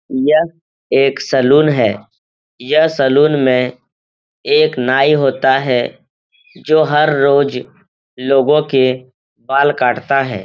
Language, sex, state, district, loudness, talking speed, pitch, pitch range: Hindi, male, Uttar Pradesh, Etah, -13 LUFS, 110 wpm, 140 Hz, 130-150 Hz